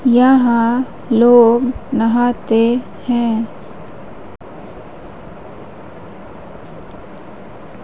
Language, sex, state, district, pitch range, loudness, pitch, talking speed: Hindi, female, Madhya Pradesh, Umaria, 230-245 Hz, -14 LUFS, 240 Hz, 30 wpm